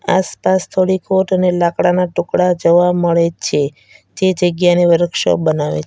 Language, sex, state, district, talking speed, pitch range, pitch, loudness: Gujarati, female, Gujarat, Valsad, 145 wpm, 170-185 Hz, 175 Hz, -15 LUFS